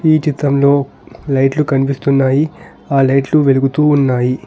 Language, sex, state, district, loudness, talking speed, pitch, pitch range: Telugu, male, Telangana, Hyderabad, -14 LUFS, 105 wpm, 140 Hz, 135-150 Hz